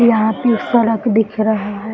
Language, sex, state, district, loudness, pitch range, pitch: Hindi, male, Bihar, East Champaran, -16 LUFS, 215-230 Hz, 220 Hz